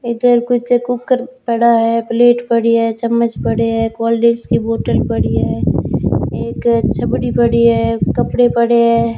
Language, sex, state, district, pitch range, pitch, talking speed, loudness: Hindi, female, Rajasthan, Bikaner, 230-240 Hz, 235 Hz, 155 wpm, -14 LUFS